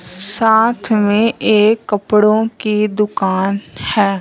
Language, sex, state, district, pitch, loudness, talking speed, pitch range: Hindi, male, Punjab, Fazilka, 210 Hz, -14 LUFS, 100 wpm, 200-220 Hz